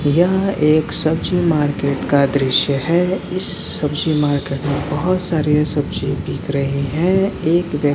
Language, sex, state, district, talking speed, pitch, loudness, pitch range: Hindi, male, Bihar, Saran, 150 wpm, 150 Hz, -17 LUFS, 145-175 Hz